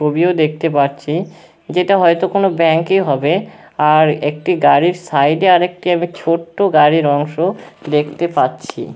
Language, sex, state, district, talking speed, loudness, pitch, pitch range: Bengali, male, West Bengal, Kolkata, 140 wpm, -14 LUFS, 165 Hz, 150-180 Hz